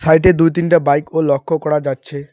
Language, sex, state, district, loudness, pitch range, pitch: Bengali, male, West Bengal, Alipurduar, -15 LUFS, 145-165 Hz, 155 Hz